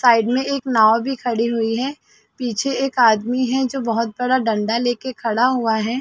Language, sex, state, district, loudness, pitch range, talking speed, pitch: Hindi, female, Chhattisgarh, Sarguja, -19 LUFS, 225-260 Hz, 210 wpm, 245 Hz